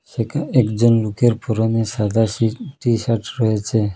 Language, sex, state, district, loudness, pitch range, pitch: Bengali, male, Assam, Hailakandi, -19 LUFS, 110-120 Hz, 115 Hz